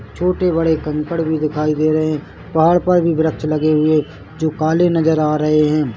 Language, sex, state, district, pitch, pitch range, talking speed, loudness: Hindi, male, Chhattisgarh, Bilaspur, 155 Hz, 150-165 Hz, 190 wpm, -16 LUFS